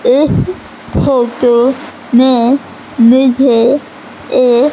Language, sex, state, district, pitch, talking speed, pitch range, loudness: Hindi, female, Madhya Pradesh, Katni, 255 Hz, 65 wpm, 240-270 Hz, -11 LUFS